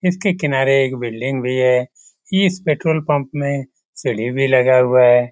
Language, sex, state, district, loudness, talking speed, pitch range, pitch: Hindi, male, Bihar, Lakhisarai, -17 LUFS, 170 wpm, 125-150 Hz, 135 Hz